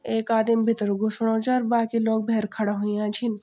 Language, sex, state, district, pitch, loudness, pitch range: Garhwali, female, Uttarakhand, Tehri Garhwal, 225 Hz, -24 LUFS, 210-230 Hz